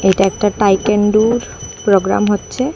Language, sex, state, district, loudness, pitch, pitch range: Bengali, female, Assam, Hailakandi, -14 LUFS, 205 Hz, 195-215 Hz